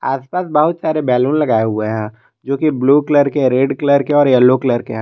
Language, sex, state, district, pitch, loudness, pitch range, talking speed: Hindi, male, Jharkhand, Garhwa, 135 Hz, -14 LUFS, 125-150 Hz, 240 wpm